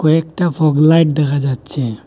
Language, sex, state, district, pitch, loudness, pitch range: Bengali, male, Assam, Hailakandi, 150 Hz, -14 LUFS, 140-160 Hz